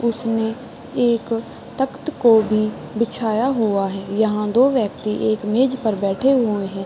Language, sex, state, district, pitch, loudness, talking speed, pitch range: Hindi, female, Uttar Pradesh, Varanasi, 225 Hz, -20 LUFS, 150 wpm, 210-245 Hz